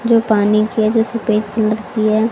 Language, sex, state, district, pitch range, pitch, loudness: Hindi, female, Haryana, Rohtak, 215-225 Hz, 215 Hz, -16 LUFS